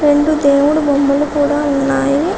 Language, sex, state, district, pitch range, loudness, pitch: Telugu, female, Telangana, Karimnagar, 280-295 Hz, -13 LUFS, 290 Hz